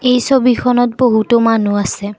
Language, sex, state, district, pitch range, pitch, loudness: Assamese, female, Assam, Kamrup Metropolitan, 215-250 Hz, 240 Hz, -13 LUFS